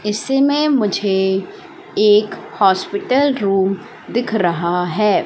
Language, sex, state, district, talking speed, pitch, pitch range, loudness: Hindi, female, Madhya Pradesh, Katni, 105 wpm, 210 Hz, 195-270 Hz, -17 LUFS